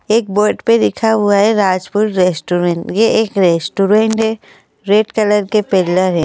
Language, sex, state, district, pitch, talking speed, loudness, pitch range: Hindi, female, Madhya Pradesh, Bhopal, 205 Hz, 165 wpm, -14 LUFS, 185-220 Hz